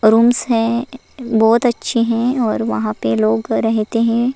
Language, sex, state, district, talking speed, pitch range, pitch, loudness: Hindi, female, Goa, North and South Goa, 165 wpm, 215-240 Hz, 230 Hz, -16 LUFS